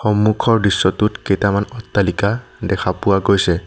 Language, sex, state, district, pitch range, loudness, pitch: Assamese, male, Assam, Sonitpur, 100-110 Hz, -17 LUFS, 100 Hz